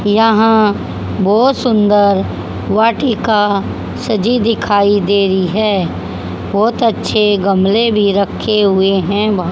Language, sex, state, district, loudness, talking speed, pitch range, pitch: Hindi, female, Haryana, Charkhi Dadri, -13 LUFS, 115 wpm, 195-220 Hz, 205 Hz